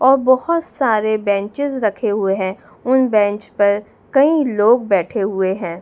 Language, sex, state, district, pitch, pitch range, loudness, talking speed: Hindi, female, Delhi, New Delhi, 215 Hz, 200-260 Hz, -17 LUFS, 155 wpm